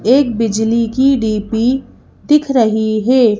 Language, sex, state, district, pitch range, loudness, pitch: Hindi, female, Madhya Pradesh, Bhopal, 220-260 Hz, -14 LUFS, 235 Hz